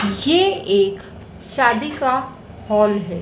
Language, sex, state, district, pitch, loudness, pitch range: Hindi, female, Madhya Pradesh, Dhar, 210 Hz, -18 LUFS, 200-265 Hz